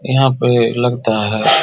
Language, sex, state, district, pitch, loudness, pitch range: Hindi, male, Bihar, Vaishali, 120 Hz, -15 LUFS, 115-130 Hz